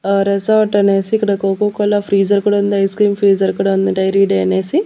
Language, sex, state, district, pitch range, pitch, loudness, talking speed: Telugu, female, Andhra Pradesh, Annamaya, 195-205 Hz, 200 Hz, -14 LUFS, 195 wpm